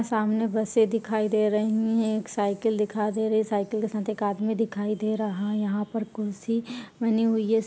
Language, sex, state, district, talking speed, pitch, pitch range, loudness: Hindi, female, Chhattisgarh, Bilaspur, 220 wpm, 220 Hz, 210-225 Hz, -26 LUFS